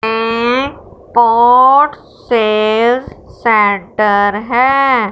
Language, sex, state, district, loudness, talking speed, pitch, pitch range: Hindi, female, Punjab, Fazilka, -12 LUFS, 60 wpm, 230 Hz, 215-250 Hz